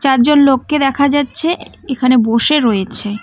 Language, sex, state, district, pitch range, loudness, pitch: Bengali, female, West Bengal, Cooch Behar, 235-290 Hz, -13 LUFS, 270 Hz